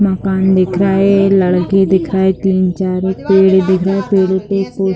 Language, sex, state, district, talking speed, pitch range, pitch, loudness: Hindi, female, Bihar, Saran, 205 wpm, 185-195 Hz, 190 Hz, -13 LUFS